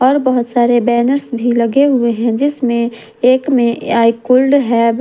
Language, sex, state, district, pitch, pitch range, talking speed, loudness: Hindi, female, Jharkhand, Ranchi, 240 Hz, 235-260 Hz, 180 wpm, -13 LUFS